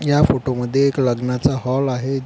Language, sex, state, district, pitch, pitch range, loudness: Marathi, male, Maharashtra, Pune, 130 Hz, 125-140 Hz, -19 LUFS